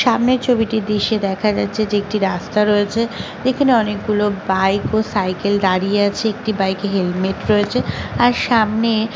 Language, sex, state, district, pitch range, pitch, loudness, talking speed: Bengali, female, West Bengal, Paschim Medinipur, 200-225 Hz, 210 Hz, -17 LUFS, 145 wpm